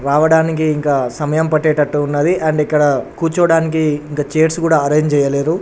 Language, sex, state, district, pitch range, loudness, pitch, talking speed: Telugu, male, Telangana, Nalgonda, 145-160 Hz, -15 LUFS, 155 Hz, 150 wpm